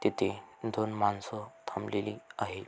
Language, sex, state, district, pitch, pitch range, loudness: Marathi, male, Maharashtra, Sindhudurg, 105 Hz, 100-110 Hz, -35 LUFS